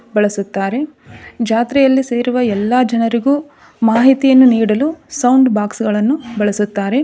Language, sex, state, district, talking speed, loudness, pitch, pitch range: Kannada, female, Karnataka, Dharwad, 95 wpm, -14 LUFS, 240 Hz, 210-265 Hz